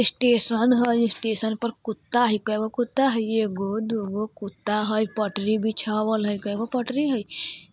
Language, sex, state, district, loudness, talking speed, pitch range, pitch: Bajjika, male, Bihar, Vaishali, -24 LUFS, 165 wpm, 210-235 Hz, 220 Hz